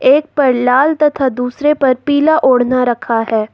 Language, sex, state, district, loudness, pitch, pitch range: Hindi, female, Jharkhand, Ranchi, -13 LUFS, 260 Hz, 245-290 Hz